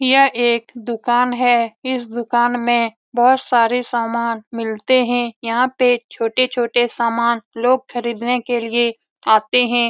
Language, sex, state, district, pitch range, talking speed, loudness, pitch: Hindi, female, Bihar, Lakhisarai, 235-250 Hz, 135 wpm, -17 LUFS, 240 Hz